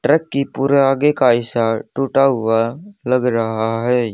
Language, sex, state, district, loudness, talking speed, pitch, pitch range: Hindi, male, Haryana, Charkhi Dadri, -17 LUFS, 160 wpm, 125 Hz, 115-140 Hz